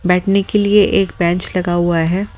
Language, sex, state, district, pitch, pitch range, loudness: Hindi, female, Delhi, New Delhi, 185 Hz, 175-200 Hz, -15 LUFS